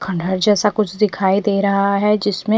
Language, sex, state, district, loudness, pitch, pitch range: Hindi, female, Punjab, Fazilka, -17 LUFS, 200 Hz, 190-210 Hz